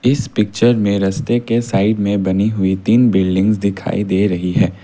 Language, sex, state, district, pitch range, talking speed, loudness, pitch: Hindi, male, Assam, Kamrup Metropolitan, 95-115 Hz, 185 wpm, -16 LUFS, 100 Hz